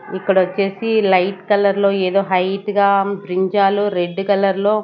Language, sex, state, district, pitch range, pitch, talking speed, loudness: Telugu, female, Andhra Pradesh, Sri Satya Sai, 190-200 Hz, 195 Hz, 150 wpm, -17 LUFS